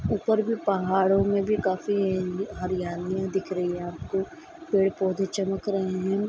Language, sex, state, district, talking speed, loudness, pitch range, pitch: Hindi, female, Bihar, Gopalganj, 145 wpm, -26 LUFS, 185-200 Hz, 190 Hz